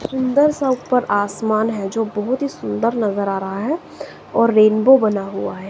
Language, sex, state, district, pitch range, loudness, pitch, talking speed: Hindi, female, Himachal Pradesh, Shimla, 200-255 Hz, -18 LUFS, 220 Hz, 190 wpm